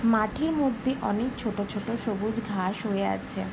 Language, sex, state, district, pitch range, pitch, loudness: Bengali, female, West Bengal, Jalpaiguri, 200-240 Hz, 215 Hz, -28 LUFS